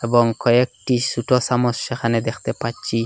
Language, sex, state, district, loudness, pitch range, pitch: Bengali, male, Assam, Hailakandi, -20 LUFS, 115-125 Hz, 120 Hz